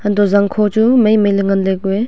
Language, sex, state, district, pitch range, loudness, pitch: Wancho, female, Arunachal Pradesh, Longding, 195-215 Hz, -13 LUFS, 205 Hz